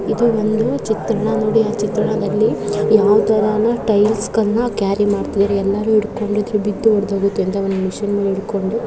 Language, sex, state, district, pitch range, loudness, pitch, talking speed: Kannada, female, Karnataka, Mysore, 205-220 Hz, -17 LUFS, 210 Hz, 120 wpm